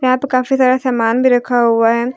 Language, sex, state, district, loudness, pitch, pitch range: Hindi, female, Jharkhand, Deoghar, -14 LUFS, 250 Hz, 235-255 Hz